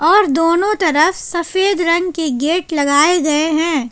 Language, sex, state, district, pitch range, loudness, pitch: Hindi, female, Jharkhand, Palamu, 300-355 Hz, -15 LUFS, 330 Hz